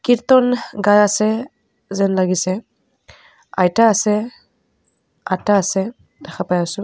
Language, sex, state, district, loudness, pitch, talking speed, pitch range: Assamese, female, Assam, Kamrup Metropolitan, -17 LUFS, 205 Hz, 105 wpm, 190-230 Hz